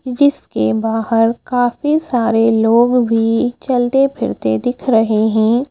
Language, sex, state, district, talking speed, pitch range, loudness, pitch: Hindi, female, Madhya Pradesh, Bhopal, 115 wpm, 225-250 Hz, -15 LUFS, 235 Hz